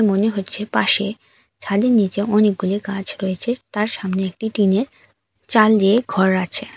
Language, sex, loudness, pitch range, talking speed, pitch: Bengali, female, -18 LUFS, 195-215 Hz, 140 wpm, 205 Hz